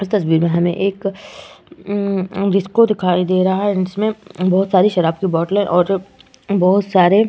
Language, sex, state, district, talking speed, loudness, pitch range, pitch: Hindi, female, Uttar Pradesh, Varanasi, 175 wpm, -16 LUFS, 185-200 Hz, 195 Hz